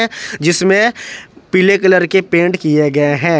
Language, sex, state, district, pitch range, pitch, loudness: Hindi, male, Jharkhand, Ranchi, 160-195 Hz, 180 Hz, -12 LUFS